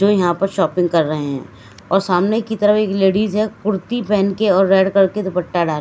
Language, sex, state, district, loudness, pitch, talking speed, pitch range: Hindi, female, Chandigarh, Chandigarh, -17 LUFS, 195 Hz, 235 wpm, 175-205 Hz